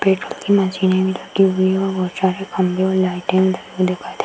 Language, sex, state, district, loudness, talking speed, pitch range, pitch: Hindi, female, Uttar Pradesh, Hamirpur, -18 LUFS, 225 wpm, 185-190 Hz, 190 Hz